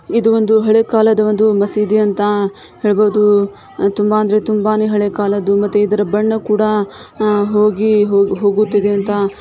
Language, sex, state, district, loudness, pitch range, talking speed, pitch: Kannada, female, Karnataka, Shimoga, -14 LUFS, 205-215 Hz, 120 wpm, 210 Hz